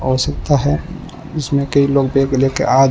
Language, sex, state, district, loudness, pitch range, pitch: Hindi, male, Rajasthan, Bikaner, -16 LUFS, 135-145 Hz, 140 Hz